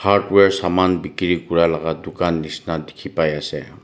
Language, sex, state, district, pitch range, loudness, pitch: Nagamese, male, Nagaland, Dimapur, 80-95 Hz, -19 LUFS, 85 Hz